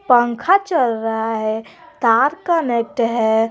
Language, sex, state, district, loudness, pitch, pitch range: Hindi, female, Jharkhand, Garhwa, -18 LUFS, 235 Hz, 225-300 Hz